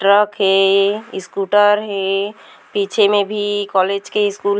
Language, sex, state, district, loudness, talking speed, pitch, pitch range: Hindi, female, Chhattisgarh, Korba, -16 LUFS, 145 wpm, 200 Hz, 195-205 Hz